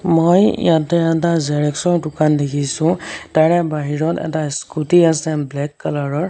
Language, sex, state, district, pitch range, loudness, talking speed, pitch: Assamese, male, Assam, Sonitpur, 150-170 Hz, -17 LUFS, 125 wpm, 155 Hz